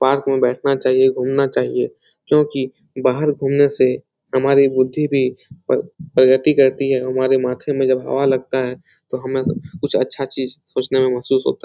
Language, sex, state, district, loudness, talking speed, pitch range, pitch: Hindi, male, Bihar, Supaul, -18 LUFS, 175 wpm, 130-140 Hz, 130 Hz